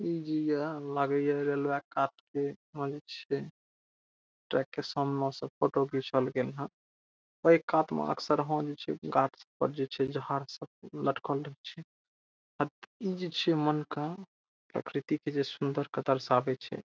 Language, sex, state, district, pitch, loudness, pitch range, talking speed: Maithili, male, Bihar, Saharsa, 145 Hz, -32 LUFS, 135-150 Hz, 160 wpm